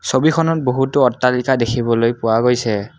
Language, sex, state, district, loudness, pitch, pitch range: Assamese, male, Assam, Kamrup Metropolitan, -16 LUFS, 125 Hz, 115-135 Hz